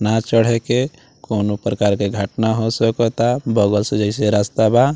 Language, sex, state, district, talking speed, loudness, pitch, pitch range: Bhojpuri, male, Bihar, Muzaffarpur, 180 wpm, -18 LUFS, 110 Hz, 105-115 Hz